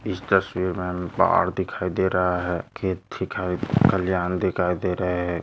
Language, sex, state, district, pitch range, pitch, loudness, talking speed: Hindi, male, Maharashtra, Aurangabad, 90-95 Hz, 90 Hz, -24 LUFS, 175 wpm